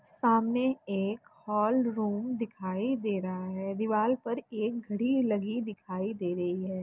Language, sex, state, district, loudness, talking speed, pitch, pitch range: Hindi, female, Bihar, Jamui, -31 LUFS, 150 wpm, 215 Hz, 195-235 Hz